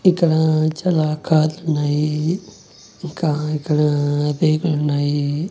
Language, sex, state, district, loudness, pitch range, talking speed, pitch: Telugu, male, Andhra Pradesh, Annamaya, -19 LUFS, 150-160 Hz, 75 wpm, 155 Hz